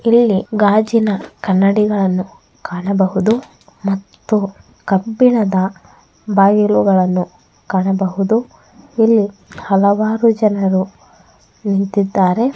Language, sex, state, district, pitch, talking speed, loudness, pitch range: Kannada, female, Karnataka, Bellary, 200 Hz, 55 wpm, -15 LUFS, 190-215 Hz